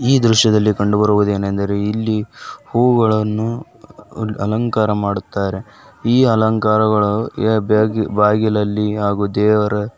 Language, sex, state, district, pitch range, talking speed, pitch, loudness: Kannada, male, Karnataka, Bijapur, 105-110 Hz, 95 wpm, 105 Hz, -16 LUFS